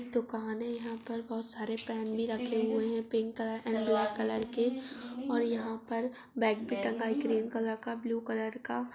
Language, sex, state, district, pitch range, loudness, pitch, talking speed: Hindi, female, Uttar Pradesh, Jalaun, 225-235 Hz, -34 LUFS, 225 Hz, 200 wpm